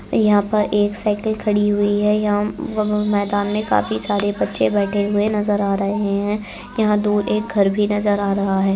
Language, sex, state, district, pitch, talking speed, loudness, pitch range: Hindi, female, Uttar Pradesh, Etah, 205 Hz, 185 wpm, -19 LUFS, 200-210 Hz